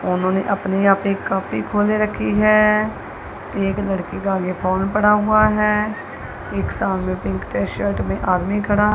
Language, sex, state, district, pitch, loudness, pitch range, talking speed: Hindi, female, Punjab, Kapurthala, 195 Hz, -19 LUFS, 185-210 Hz, 155 wpm